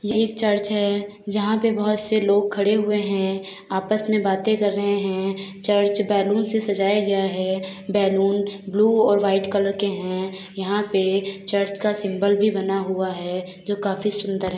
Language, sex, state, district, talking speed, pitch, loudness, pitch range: Hindi, female, Uttar Pradesh, Hamirpur, 200 wpm, 200 Hz, -22 LUFS, 195-210 Hz